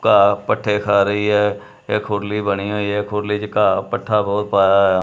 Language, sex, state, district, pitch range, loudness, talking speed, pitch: Punjabi, male, Punjab, Kapurthala, 100-105 Hz, -18 LUFS, 205 wpm, 105 Hz